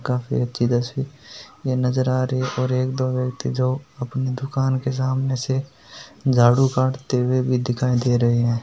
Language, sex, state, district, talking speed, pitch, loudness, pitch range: Marwari, male, Rajasthan, Nagaur, 175 wpm, 130 Hz, -22 LUFS, 125-130 Hz